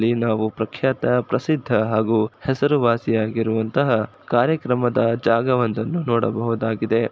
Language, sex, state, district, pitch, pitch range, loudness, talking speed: Kannada, male, Karnataka, Shimoga, 115 Hz, 110-125 Hz, -21 LUFS, 85 wpm